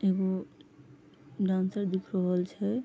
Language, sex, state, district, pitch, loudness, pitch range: Maithili, female, Bihar, Vaishali, 190 Hz, -31 LUFS, 185-200 Hz